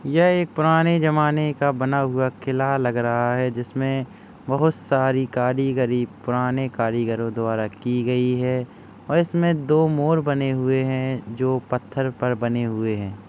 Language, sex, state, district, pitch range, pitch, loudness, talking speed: Hindi, male, Uttar Pradesh, Jalaun, 120-140 Hz, 130 Hz, -22 LUFS, 155 wpm